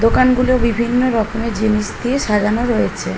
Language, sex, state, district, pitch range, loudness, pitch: Bengali, female, West Bengal, Jhargram, 220-250 Hz, -16 LUFS, 230 Hz